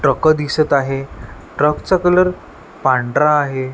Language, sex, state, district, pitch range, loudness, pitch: Marathi, male, Maharashtra, Washim, 135-155 Hz, -16 LUFS, 150 Hz